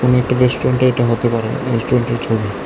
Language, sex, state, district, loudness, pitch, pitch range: Bengali, male, Tripura, West Tripura, -16 LUFS, 120 Hz, 115-125 Hz